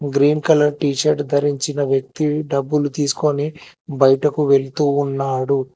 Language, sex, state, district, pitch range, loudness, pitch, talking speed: Telugu, male, Telangana, Hyderabad, 140-150 Hz, -18 LUFS, 145 Hz, 105 wpm